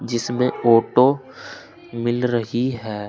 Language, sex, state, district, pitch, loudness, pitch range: Hindi, male, Uttar Pradesh, Saharanpur, 120 Hz, -20 LUFS, 115-125 Hz